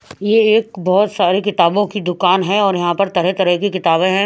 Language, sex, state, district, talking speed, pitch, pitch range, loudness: Hindi, female, Odisha, Khordha, 225 wpm, 190 Hz, 180-205 Hz, -15 LUFS